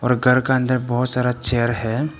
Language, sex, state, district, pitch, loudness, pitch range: Hindi, male, Arunachal Pradesh, Papum Pare, 125 Hz, -19 LUFS, 120-130 Hz